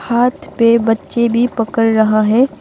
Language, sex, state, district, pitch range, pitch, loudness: Hindi, female, Arunachal Pradesh, Longding, 225-240 Hz, 230 Hz, -14 LUFS